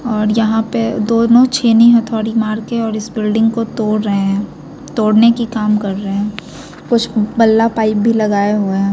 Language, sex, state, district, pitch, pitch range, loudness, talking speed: Hindi, female, Bihar, Muzaffarpur, 220 Hz, 210-230 Hz, -14 LUFS, 175 wpm